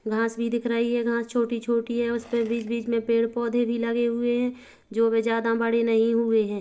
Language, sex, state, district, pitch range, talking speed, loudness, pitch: Hindi, female, Chhattisgarh, Kabirdham, 230-235 Hz, 210 wpm, -25 LUFS, 235 Hz